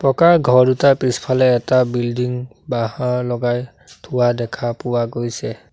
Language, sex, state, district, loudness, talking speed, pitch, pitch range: Assamese, male, Assam, Sonitpur, -18 LUFS, 125 wpm, 125 Hz, 120-130 Hz